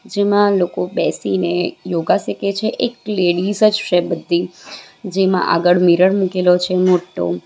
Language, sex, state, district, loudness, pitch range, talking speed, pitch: Gujarati, female, Gujarat, Valsad, -16 LUFS, 175-200 Hz, 135 wpm, 185 Hz